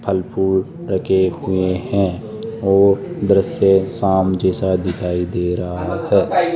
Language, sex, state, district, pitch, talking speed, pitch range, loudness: Hindi, male, Rajasthan, Jaipur, 95 Hz, 120 wpm, 90-100 Hz, -17 LUFS